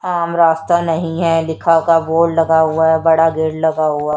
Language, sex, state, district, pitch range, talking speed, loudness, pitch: Hindi, female, Haryana, Charkhi Dadri, 160-165 Hz, 185 wpm, -14 LUFS, 165 Hz